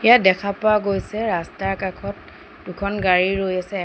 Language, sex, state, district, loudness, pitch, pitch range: Assamese, female, Assam, Sonitpur, -20 LUFS, 195 Hz, 185-205 Hz